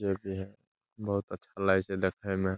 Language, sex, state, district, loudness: Maithili, male, Bihar, Saharsa, -32 LUFS